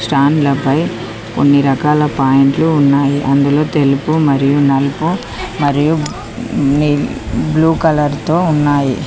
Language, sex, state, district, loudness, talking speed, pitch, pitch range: Telugu, female, Telangana, Mahabubabad, -13 LUFS, 105 wpm, 145 Hz, 140-150 Hz